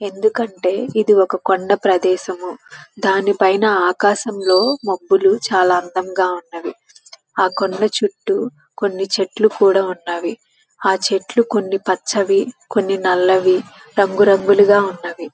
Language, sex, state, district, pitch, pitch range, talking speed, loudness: Telugu, female, Andhra Pradesh, Krishna, 195 Hz, 185-215 Hz, 115 wpm, -17 LUFS